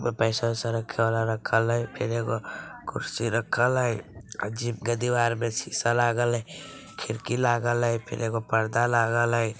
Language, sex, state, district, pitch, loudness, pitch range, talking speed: Bajjika, female, Bihar, Vaishali, 115 Hz, -26 LUFS, 115-120 Hz, 145 wpm